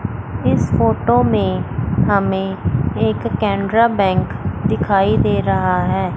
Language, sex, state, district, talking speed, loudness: Hindi, female, Chandigarh, Chandigarh, 105 wpm, -17 LUFS